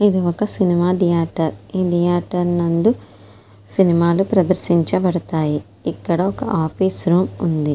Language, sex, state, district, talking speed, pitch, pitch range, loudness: Telugu, female, Andhra Pradesh, Srikakulam, 115 wpm, 175 Hz, 160-185 Hz, -18 LUFS